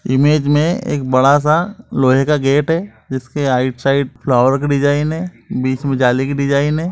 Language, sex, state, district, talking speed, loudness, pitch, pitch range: Hindi, male, Uttar Pradesh, Etah, 190 wpm, -15 LUFS, 140 Hz, 130-150 Hz